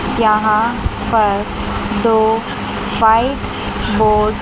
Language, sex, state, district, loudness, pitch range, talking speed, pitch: Hindi, female, Chandigarh, Chandigarh, -16 LUFS, 215-225 Hz, 80 wpm, 220 Hz